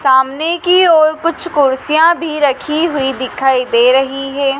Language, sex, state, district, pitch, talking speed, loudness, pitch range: Hindi, female, Madhya Pradesh, Dhar, 280 Hz, 155 wpm, -13 LUFS, 265-325 Hz